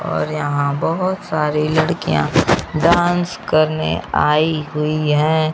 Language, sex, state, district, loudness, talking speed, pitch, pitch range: Hindi, male, Bihar, Kaimur, -17 LUFS, 110 wpm, 155 Hz, 150-165 Hz